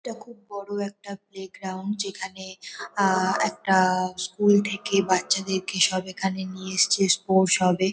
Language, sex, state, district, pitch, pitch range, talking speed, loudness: Bengali, female, West Bengal, North 24 Parganas, 190 Hz, 185-200 Hz, 135 wpm, -24 LUFS